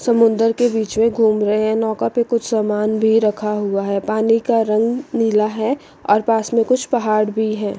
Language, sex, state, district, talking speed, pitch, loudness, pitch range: Hindi, female, Chandigarh, Chandigarh, 210 wpm, 220 Hz, -17 LUFS, 215-230 Hz